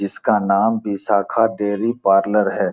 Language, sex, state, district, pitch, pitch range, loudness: Hindi, male, Bihar, Gopalganj, 105 Hz, 100-110 Hz, -18 LUFS